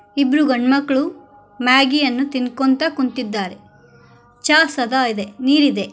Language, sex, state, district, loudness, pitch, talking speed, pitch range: Kannada, female, Karnataka, Koppal, -17 LUFS, 265 Hz, 100 wpm, 250-280 Hz